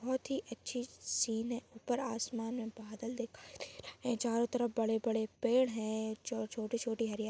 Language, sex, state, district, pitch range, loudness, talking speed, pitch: Hindi, male, Maharashtra, Dhule, 225-245 Hz, -37 LUFS, 195 wpm, 235 Hz